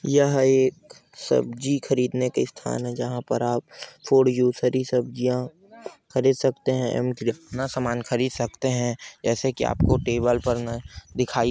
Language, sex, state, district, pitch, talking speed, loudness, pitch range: Hindi, male, Chhattisgarh, Kabirdham, 125 Hz, 165 wpm, -24 LUFS, 120-130 Hz